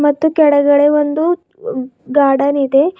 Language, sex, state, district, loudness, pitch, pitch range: Kannada, female, Karnataka, Bidar, -13 LUFS, 290 Hz, 280-315 Hz